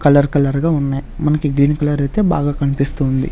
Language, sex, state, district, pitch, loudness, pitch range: Telugu, male, Andhra Pradesh, Sri Satya Sai, 145 Hz, -16 LUFS, 140-150 Hz